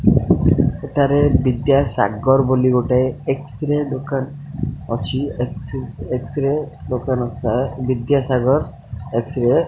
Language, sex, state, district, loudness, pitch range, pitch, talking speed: Odia, male, Odisha, Khordha, -19 LUFS, 125-140 Hz, 130 Hz, 95 wpm